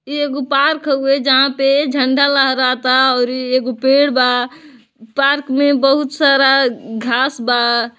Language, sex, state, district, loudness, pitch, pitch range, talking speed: Bhojpuri, female, Uttar Pradesh, Deoria, -14 LUFS, 270 Hz, 255-280 Hz, 135 wpm